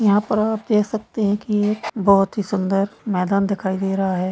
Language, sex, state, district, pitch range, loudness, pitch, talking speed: Hindi, male, Bihar, Gaya, 195-210 Hz, -20 LUFS, 200 Hz, 210 wpm